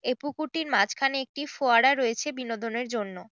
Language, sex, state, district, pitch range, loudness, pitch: Bengali, female, West Bengal, Jhargram, 230-290 Hz, -26 LUFS, 255 Hz